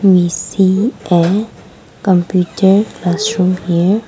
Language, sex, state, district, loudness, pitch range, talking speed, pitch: English, female, Nagaland, Kohima, -14 LUFS, 180-205 Hz, 105 wpm, 190 Hz